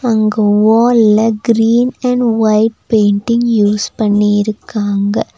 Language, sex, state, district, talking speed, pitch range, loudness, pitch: Tamil, female, Tamil Nadu, Nilgiris, 100 wpm, 210-230 Hz, -12 LUFS, 220 Hz